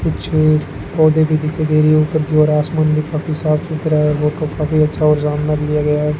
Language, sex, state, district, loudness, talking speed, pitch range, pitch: Hindi, male, Rajasthan, Bikaner, -15 LUFS, 250 wpm, 150-155 Hz, 155 Hz